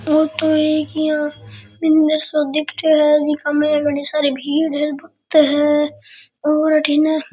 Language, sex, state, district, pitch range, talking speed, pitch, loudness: Rajasthani, male, Rajasthan, Churu, 295-310 Hz, 165 wpm, 300 Hz, -17 LUFS